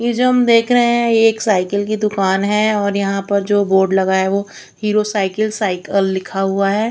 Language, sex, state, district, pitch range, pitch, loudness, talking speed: Hindi, female, Chandigarh, Chandigarh, 195-215 Hz, 205 Hz, -16 LUFS, 225 wpm